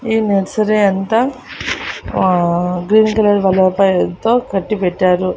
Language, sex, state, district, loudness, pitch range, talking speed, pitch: Telugu, female, Andhra Pradesh, Annamaya, -15 LUFS, 185-220 Hz, 125 wpm, 195 Hz